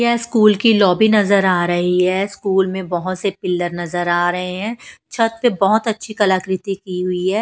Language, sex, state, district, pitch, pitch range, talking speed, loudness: Hindi, female, Punjab, Pathankot, 195 Hz, 180-215 Hz, 195 wpm, -17 LUFS